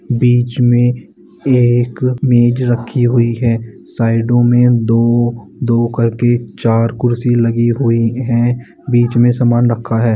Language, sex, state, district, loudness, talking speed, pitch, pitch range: Hindi, male, Bihar, Bhagalpur, -13 LUFS, 130 wpm, 120 Hz, 115-120 Hz